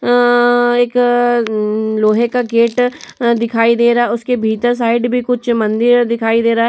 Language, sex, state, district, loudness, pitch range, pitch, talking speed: Hindi, female, Uttar Pradesh, Etah, -14 LUFS, 230-245 Hz, 235 Hz, 205 wpm